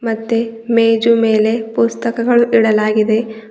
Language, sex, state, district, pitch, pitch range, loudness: Kannada, female, Karnataka, Bidar, 225 Hz, 220-235 Hz, -14 LUFS